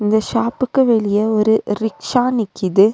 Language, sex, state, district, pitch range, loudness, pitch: Tamil, female, Tamil Nadu, Nilgiris, 210-235 Hz, -17 LUFS, 220 Hz